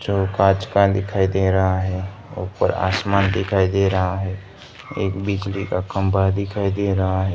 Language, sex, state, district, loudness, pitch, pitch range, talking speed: Hindi, male, Gujarat, Gandhinagar, -20 LUFS, 95 Hz, 95-100 Hz, 170 wpm